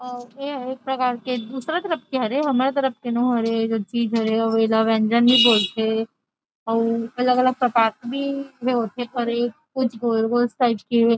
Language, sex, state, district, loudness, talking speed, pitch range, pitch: Chhattisgarhi, female, Chhattisgarh, Rajnandgaon, -21 LUFS, 170 wpm, 230-255 Hz, 240 Hz